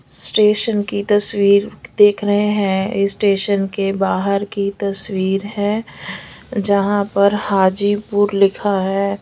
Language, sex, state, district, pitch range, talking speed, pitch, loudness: Hindi, female, Odisha, Sambalpur, 195-205 Hz, 110 wpm, 200 Hz, -17 LUFS